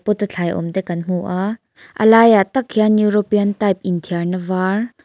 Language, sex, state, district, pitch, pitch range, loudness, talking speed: Mizo, female, Mizoram, Aizawl, 200 Hz, 180-215 Hz, -17 LUFS, 190 wpm